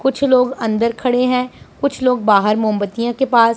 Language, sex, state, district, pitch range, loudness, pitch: Hindi, female, Punjab, Pathankot, 225-255 Hz, -16 LUFS, 245 Hz